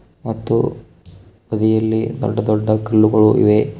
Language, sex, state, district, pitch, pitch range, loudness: Kannada, male, Karnataka, Koppal, 110 Hz, 105-115 Hz, -16 LUFS